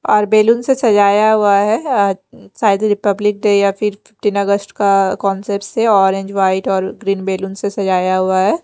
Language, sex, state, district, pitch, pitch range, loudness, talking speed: Hindi, female, Bihar, Patna, 200 Hz, 195-210 Hz, -15 LUFS, 180 wpm